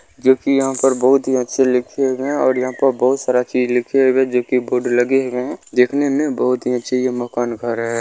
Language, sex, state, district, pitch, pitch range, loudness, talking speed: Maithili, male, Bihar, Bhagalpur, 125 Hz, 125-135 Hz, -17 LUFS, 245 wpm